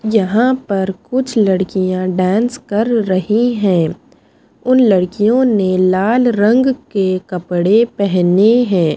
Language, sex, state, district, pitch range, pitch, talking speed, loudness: Hindi, female, Punjab, Pathankot, 185-235 Hz, 205 Hz, 115 wpm, -14 LUFS